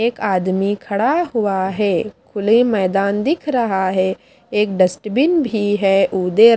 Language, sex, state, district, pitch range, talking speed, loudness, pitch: Hindi, female, Bihar, Kaimur, 190-235 Hz, 135 wpm, -17 LUFS, 205 Hz